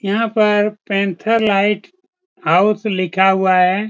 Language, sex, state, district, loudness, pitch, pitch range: Hindi, male, Bihar, Saran, -16 LUFS, 205 Hz, 190-220 Hz